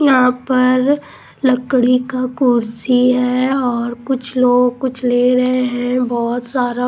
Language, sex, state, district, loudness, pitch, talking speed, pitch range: Hindi, female, Punjab, Pathankot, -16 LUFS, 250 Hz, 130 wpm, 245-255 Hz